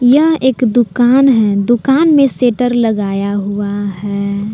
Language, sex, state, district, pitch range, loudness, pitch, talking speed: Hindi, female, Jharkhand, Palamu, 205-260 Hz, -12 LUFS, 240 Hz, 130 wpm